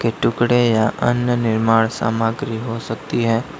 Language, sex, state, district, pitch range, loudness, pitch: Hindi, male, Uttar Pradesh, Lalitpur, 115-120 Hz, -18 LUFS, 115 Hz